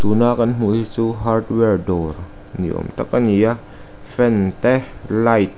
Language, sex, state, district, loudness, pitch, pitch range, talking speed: Mizo, male, Mizoram, Aizawl, -18 LUFS, 110 Hz, 100-115 Hz, 180 wpm